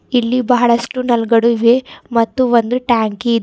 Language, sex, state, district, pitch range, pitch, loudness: Kannada, female, Karnataka, Bidar, 230-250 Hz, 235 Hz, -14 LUFS